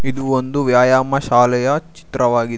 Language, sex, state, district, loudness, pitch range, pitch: Kannada, male, Karnataka, Bangalore, -16 LUFS, 125-135 Hz, 130 Hz